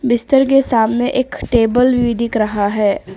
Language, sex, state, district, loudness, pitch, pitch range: Hindi, female, Arunachal Pradesh, Papum Pare, -15 LUFS, 240 Hz, 215-255 Hz